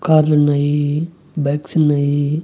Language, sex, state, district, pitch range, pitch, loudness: Telugu, male, Andhra Pradesh, Annamaya, 145-155 Hz, 150 Hz, -17 LUFS